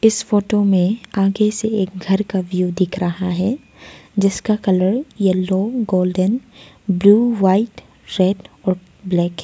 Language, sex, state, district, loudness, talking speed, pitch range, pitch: Hindi, female, Arunachal Pradesh, Lower Dibang Valley, -18 LUFS, 140 wpm, 185-215 Hz, 195 Hz